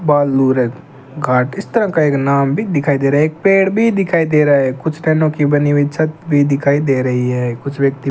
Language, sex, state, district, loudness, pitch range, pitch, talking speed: Hindi, male, Rajasthan, Bikaner, -15 LUFS, 135-155 Hz, 145 Hz, 250 wpm